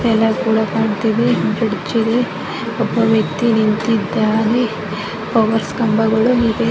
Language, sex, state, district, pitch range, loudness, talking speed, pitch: Kannada, female, Karnataka, Bijapur, 215-230 Hz, -16 LUFS, 100 wpm, 220 Hz